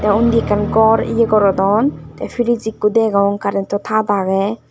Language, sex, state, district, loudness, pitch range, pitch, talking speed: Chakma, female, Tripura, Dhalai, -16 LUFS, 200-220 Hz, 210 Hz, 165 wpm